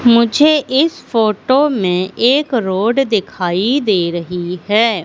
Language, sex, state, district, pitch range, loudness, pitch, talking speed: Hindi, female, Madhya Pradesh, Katni, 185-265 Hz, -14 LUFS, 225 Hz, 120 wpm